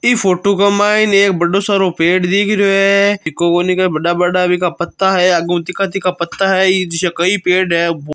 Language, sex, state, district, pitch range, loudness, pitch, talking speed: Marwari, male, Rajasthan, Churu, 175-195 Hz, -13 LUFS, 185 Hz, 170 wpm